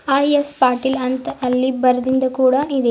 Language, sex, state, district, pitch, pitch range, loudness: Kannada, female, Karnataka, Bidar, 260 Hz, 255-270 Hz, -17 LUFS